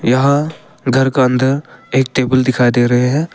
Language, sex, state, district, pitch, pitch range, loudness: Hindi, male, Arunachal Pradesh, Papum Pare, 130 Hz, 125-135 Hz, -14 LUFS